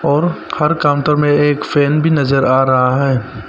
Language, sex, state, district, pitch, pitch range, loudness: Hindi, male, Arunachal Pradesh, Papum Pare, 145 Hz, 135-150 Hz, -14 LUFS